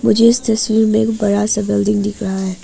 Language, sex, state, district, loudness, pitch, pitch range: Hindi, female, Arunachal Pradesh, Papum Pare, -15 LUFS, 210 Hz, 205-220 Hz